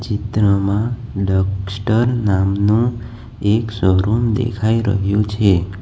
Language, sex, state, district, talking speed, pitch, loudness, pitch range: Gujarati, male, Gujarat, Valsad, 80 wpm, 105 Hz, -17 LUFS, 100-115 Hz